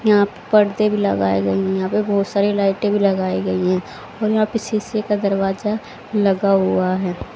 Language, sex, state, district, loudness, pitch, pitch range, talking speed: Hindi, female, Haryana, Rohtak, -19 LUFS, 200 Hz, 190-210 Hz, 185 wpm